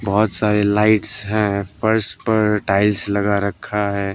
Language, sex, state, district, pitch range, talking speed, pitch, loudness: Hindi, male, Bihar, West Champaran, 100-105 Hz, 145 wpm, 105 Hz, -18 LUFS